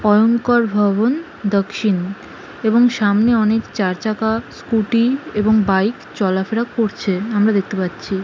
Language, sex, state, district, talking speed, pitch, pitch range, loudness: Bengali, female, West Bengal, Malda, 110 wpm, 215 Hz, 200-230 Hz, -17 LUFS